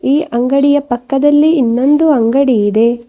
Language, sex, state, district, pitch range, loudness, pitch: Kannada, female, Karnataka, Bidar, 240-290 Hz, -11 LUFS, 270 Hz